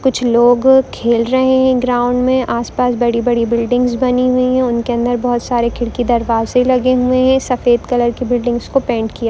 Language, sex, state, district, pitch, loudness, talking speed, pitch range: Hindi, female, Chhattisgarh, Bilaspur, 245 Hz, -14 LUFS, 185 wpm, 235-255 Hz